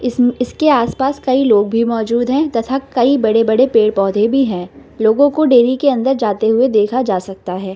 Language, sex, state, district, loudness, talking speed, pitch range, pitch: Hindi, female, Bihar, Samastipur, -14 LUFS, 195 wpm, 220-265 Hz, 240 Hz